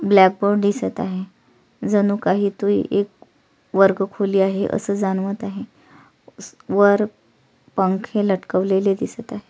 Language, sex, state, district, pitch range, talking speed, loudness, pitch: Marathi, female, Maharashtra, Solapur, 190-205 Hz, 120 wpm, -20 LUFS, 195 Hz